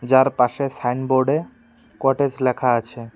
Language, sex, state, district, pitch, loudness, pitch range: Bengali, male, West Bengal, Cooch Behar, 130 Hz, -20 LUFS, 125-140 Hz